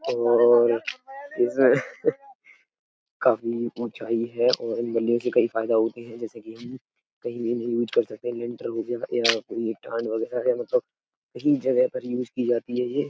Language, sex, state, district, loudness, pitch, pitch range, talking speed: Hindi, male, Uttar Pradesh, Etah, -24 LUFS, 120 Hz, 115-130 Hz, 180 wpm